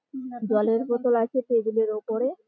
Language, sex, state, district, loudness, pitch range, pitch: Bengali, female, West Bengal, Malda, -25 LUFS, 225-255 Hz, 235 Hz